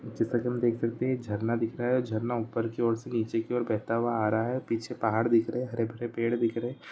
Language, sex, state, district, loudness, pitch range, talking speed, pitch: Hindi, male, Chhattisgarh, Sarguja, -29 LUFS, 115-120 Hz, 310 wpm, 115 Hz